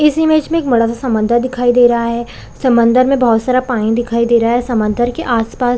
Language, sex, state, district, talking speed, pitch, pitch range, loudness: Hindi, female, Chhattisgarh, Balrampur, 250 wpm, 240 Hz, 235-255 Hz, -13 LUFS